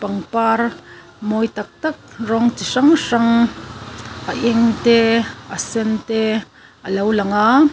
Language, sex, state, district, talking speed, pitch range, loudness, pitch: Mizo, female, Mizoram, Aizawl, 130 wpm, 210-235 Hz, -17 LUFS, 225 Hz